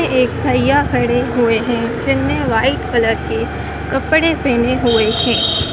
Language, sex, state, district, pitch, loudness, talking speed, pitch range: Hindi, female, Madhya Pradesh, Dhar, 240 Hz, -15 LUFS, 145 wpm, 225-255 Hz